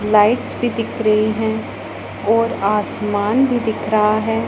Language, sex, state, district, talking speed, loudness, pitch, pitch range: Hindi, female, Punjab, Pathankot, 145 wpm, -18 LUFS, 220 Hz, 210-230 Hz